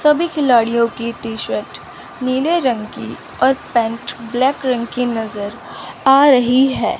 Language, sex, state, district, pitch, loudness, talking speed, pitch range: Hindi, female, Chandigarh, Chandigarh, 245 Hz, -17 LUFS, 135 wpm, 235-265 Hz